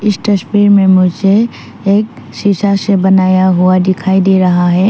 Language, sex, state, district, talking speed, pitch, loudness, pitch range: Hindi, female, Arunachal Pradesh, Papum Pare, 160 wpm, 195 Hz, -10 LUFS, 185-205 Hz